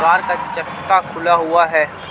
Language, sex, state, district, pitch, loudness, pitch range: Hindi, male, Jharkhand, Ranchi, 170 Hz, -16 LUFS, 165-175 Hz